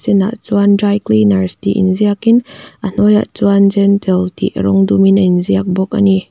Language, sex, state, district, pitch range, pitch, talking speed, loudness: Mizo, female, Mizoram, Aizawl, 185-205 Hz, 195 Hz, 200 wpm, -12 LUFS